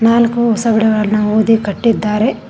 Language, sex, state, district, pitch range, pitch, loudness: Kannada, female, Karnataka, Koppal, 215-230 Hz, 220 Hz, -13 LUFS